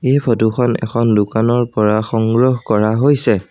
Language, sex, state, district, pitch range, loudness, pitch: Assamese, male, Assam, Sonitpur, 110-125 Hz, -15 LUFS, 115 Hz